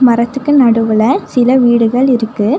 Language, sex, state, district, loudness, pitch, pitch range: Tamil, female, Tamil Nadu, Nilgiris, -11 LUFS, 240 Hz, 230-260 Hz